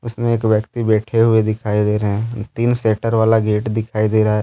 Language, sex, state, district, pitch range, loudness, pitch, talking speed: Hindi, male, Jharkhand, Deoghar, 105-115 Hz, -17 LUFS, 110 Hz, 230 wpm